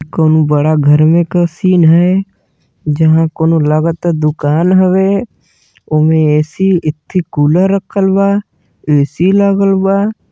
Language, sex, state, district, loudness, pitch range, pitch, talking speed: Bhojpuri, male, Uttar Pradesh, Deoria, -11 LUFS, 155-190 Hz, 165 Hz, 115 wpm